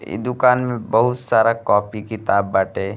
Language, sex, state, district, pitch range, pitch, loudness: Bhojpuri, male, Uttar Pradesh, Gorakhpur, 100-125 Hz, 110 Hz, -18 LUFS